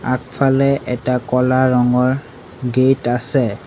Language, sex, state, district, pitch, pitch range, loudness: Assamese, male, Assam, Sonitpur, 125 Hz, 125-130 Hz, -17 LUFS